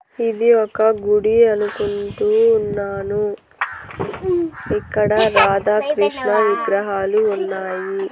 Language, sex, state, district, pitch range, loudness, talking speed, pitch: Telugu, female, Andhra Pradesh, Annamaya, 200-235 Hz, -18 LUFS, 65 wpm, 210 Hz